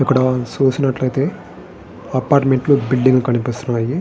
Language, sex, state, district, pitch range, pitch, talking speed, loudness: Telugu, male, Andhra Pradesh, Srikakulam, 125-135 Hz, 130 Hz, 75 wpm, -17 LUFS